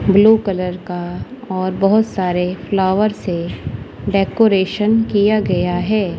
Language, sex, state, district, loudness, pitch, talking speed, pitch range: Hindi, female, Punjab, Kapurthala, -17 LUFS, 195 Hz, 115 wpm, 180-210 Hz